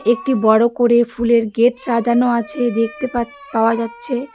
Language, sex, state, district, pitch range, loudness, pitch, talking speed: Bengali, female, West Bengal, Darjeeling, 230-245 Hz, -17 LUFS, 235 Hz, 150 wpm